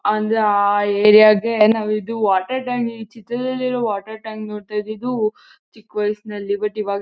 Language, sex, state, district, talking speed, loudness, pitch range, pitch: Kannada, female, Karnataka, Mysore, 145 wpm, -18 LUFS, 210-225 Hz, 215 Hz